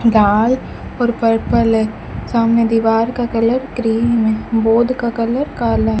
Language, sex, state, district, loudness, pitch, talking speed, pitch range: Hindi, female, Rajasthan, Bikaner, -16 LUFS, 230 Hz, 150 wpm, 225-240 Hz